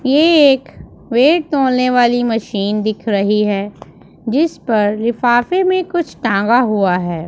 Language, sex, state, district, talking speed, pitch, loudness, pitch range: Hindi, female, Punjab, Pathankot, 140 wpm, 240 Hz, -15 LUFS, 210-280 Hz